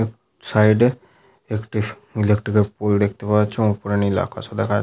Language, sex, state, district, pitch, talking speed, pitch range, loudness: Bengali, male, West Bengal, Paschim Medinipur, 105 Hz, 185 wpm, 105-110 Hz, -20 LUFS